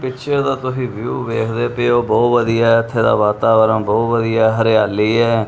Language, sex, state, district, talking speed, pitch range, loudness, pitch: Punjabi, male, Punjab, Kapurthala, 195 wpm, 110-120 Hz, -15 LUFS, 115 Hz